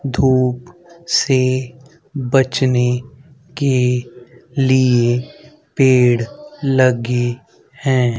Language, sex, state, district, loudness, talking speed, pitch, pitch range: Hindi, male, Haryana, Rohtak, -16 LUFS, 60 wpm, 130 Hz, 125-135 Hz